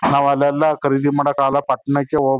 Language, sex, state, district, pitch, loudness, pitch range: Kannada, male, Karnataka, Chamarajanagar, 140 Hz, -17 LUFS, 140-145 Hz